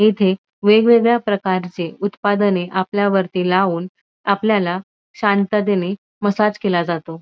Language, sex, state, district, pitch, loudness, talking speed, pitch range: Marathi, female, Maharashtra, Dhule, 200 Hz, -18 LUFS, 90 wpm, 185-205 Hz